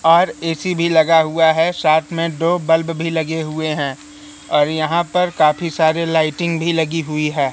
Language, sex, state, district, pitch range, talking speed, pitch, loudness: Hindi, male, Madhya Pradesh, Katni, 155-170 Hz, 190 wpm, 165 Hz, -17 LUFS